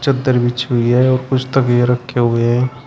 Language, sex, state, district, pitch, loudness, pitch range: Hindi, male, Uttar Pradesh, Shamli, 125 Hz, -15 LUFS, 120-130 Hz